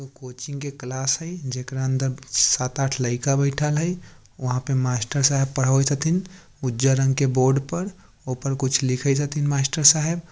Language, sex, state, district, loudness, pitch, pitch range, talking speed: Bajjika, male, Bihar, Vaishali, -22 LUFS, 135 Hz, 130-145 Hz, 170 wpm